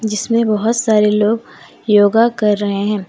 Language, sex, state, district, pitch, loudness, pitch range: Hindi, female, Jharkhand, Deoghar, 215 Hz, -14 LUFS, 210-230 Hz